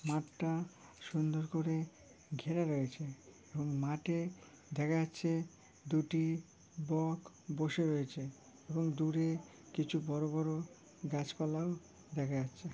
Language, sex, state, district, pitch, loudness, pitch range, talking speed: Bengali, female, West Bengal, Malda, 155 Hz, -38 LUFS, 150-165 Hz, 100 wpm